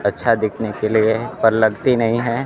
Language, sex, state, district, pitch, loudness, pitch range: Hindi, male, Bihar, Kaimur, 110 Hz, -18 LUFS, 110-115 Hz